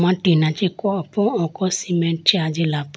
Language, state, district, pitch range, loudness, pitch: Idu Mishmi, Arunachal Pradesh, Lower Dibang Valley, 160-190 Hz, -20 LUFS, 175 Hz